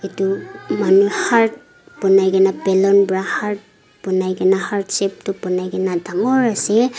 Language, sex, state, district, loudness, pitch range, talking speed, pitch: Nagamese, female, Nagaland, Kohima, -17 LUFS, 190-205 Hz, 145 wpm, 195 Hz